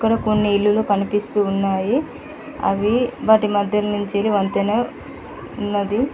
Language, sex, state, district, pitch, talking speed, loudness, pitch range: Telugu, female, Telangana, Mahabubabad, 210 Hz, 95 wpm, -19 LUFS, 200-220 Hz